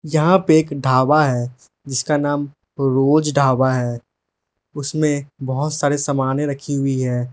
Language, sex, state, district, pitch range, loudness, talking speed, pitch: Hindi, male, Arunachal Pradesh, Lower Dibang Valley, 130-150 Hz, -18 LUFS, 140 wpm, 140 Hz